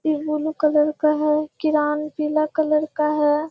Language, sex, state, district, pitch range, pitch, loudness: Hindi, female, Bihar, Kishanganj, 300-310 Hz, 305 Hz, -21 LUFS